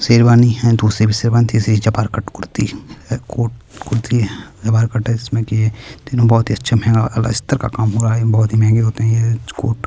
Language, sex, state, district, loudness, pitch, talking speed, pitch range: Hindi, male, Chhattisgarh, Kabirdham, -16 LUFS, 115 Hz, 230 wpm, 110-115 Hz